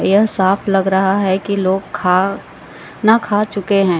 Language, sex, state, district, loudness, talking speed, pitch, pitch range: Hindi, female, Uttar Pradesh, Lalitpur, -15 LUFS, 180 wpm, 195 Hz, 190-205 Hz